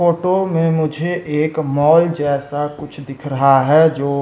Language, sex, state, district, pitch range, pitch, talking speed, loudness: Hindi, male, Bihar, West Champaran, 140-165 Hz, 150 Hz, 155 wpm, -16 LUFS